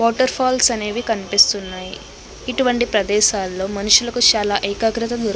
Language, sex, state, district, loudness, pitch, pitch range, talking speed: Telugu, female, Andhra Pradesh, Krishna, -17 LUFS, 215 Hz, 200-240 Hz, 100 wpm